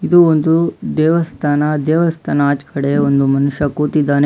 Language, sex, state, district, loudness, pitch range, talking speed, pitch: Kannada, male, Karnataka, Bangalore, -15 LUFS, 140-160 Hz, 115 wpm, 150 Hz